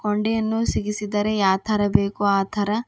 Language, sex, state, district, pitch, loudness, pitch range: Kannada, female, Karnataka, Bidar, 210 Hz, -22 LUFS, 205-215 Hz